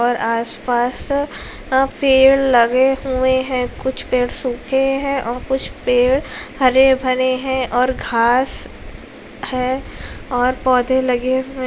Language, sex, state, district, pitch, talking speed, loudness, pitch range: Hindi, female, Bihar, Lakhisarai, 255 Hz, 120 wpm, -17 LUFS, 250-265 Hz